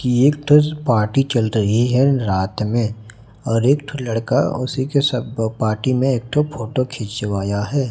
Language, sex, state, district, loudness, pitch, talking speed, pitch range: Hindi, male, Chhattisgarh, Raipur, -19 LUFS, 125 Hz, 180 wpm, 110-135 Hz